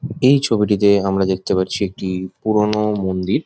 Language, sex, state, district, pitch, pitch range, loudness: Bengali, male, West Bengal, Jhargram, 100 Hz, 95-105 Hz, -18 LUFS